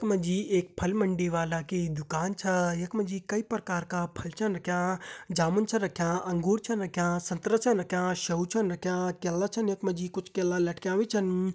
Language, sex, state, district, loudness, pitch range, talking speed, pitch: Hindi, male, Uttarakhand, Uttarkashi, -29 LUFS, 175-200 Hz, 190 wpm, 185 Hz